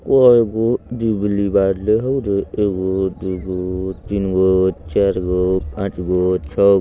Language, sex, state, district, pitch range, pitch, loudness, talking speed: Bajjika, male, Bihar, Vaishali, 95-105 Hz, 95 Hz, -18 LUFS, 105 wpm